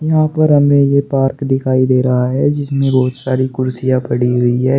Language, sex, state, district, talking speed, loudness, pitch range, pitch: Hindi, male, Uttar Pradesh, Shamli, 200 wpm, -14 LUFS, 130-140 Hz, 130 Hz